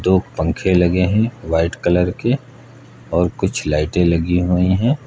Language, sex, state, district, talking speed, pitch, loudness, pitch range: Hindi, male, Uttar Pradesh, Lucknow, 155 wpm, 90 Hz, -18 LUFS, 85-110 Hz